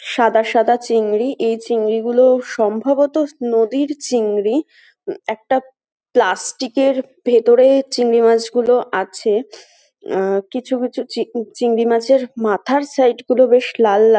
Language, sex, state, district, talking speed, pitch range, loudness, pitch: Bengali, female, West Bengal, North 24 Parganas, 125 wpm, 225-265 Hz, -16 LUFS, 240 Hz